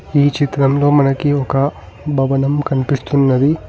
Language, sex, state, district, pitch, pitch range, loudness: Telugu, male, Telangana, Hyderabad, 140 Hz, 135-145 Hz, -15 LUFS